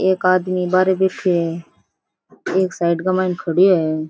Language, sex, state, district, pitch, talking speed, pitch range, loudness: Rajasthani, female, Rajasthan, Churu, 185 Hz, 160 wpm, 170-185 Hz, -18 LUFS